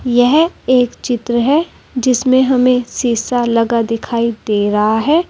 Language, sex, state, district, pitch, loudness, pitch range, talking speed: Hindi, female, Uttar Pradesh, Saharanpur, 245 Hz, -14 LUFS, 230-255 Hz, 135 wpm